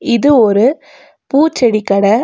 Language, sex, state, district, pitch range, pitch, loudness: Tamil, female, Tamil Nadu, Nilgiris, 215-290 Hz, 250 Hz, -12 LUFS